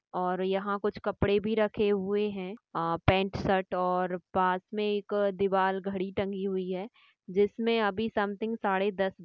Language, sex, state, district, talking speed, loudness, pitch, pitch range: Hindi, female, Maharashtra, Nagpur, 170 wpm, -30 LUFS, 195 Hz, 185-205 Hz